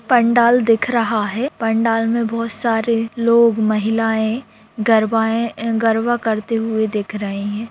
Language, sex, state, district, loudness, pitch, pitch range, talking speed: Hindi, female, Jharkhand, Sahebganj, -17 LUFS, 225 Hz, 220-230 Hz, 130 wpm